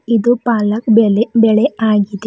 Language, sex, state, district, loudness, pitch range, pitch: Kannada, female, Karnataka, Bidar, -13 LUFS, 215-235 Hz, 225 Hz